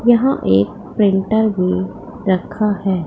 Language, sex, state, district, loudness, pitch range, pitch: Hindi, female, Punjab, Pathankot, -17 LUFS, 185-220 Hz, 200 Hz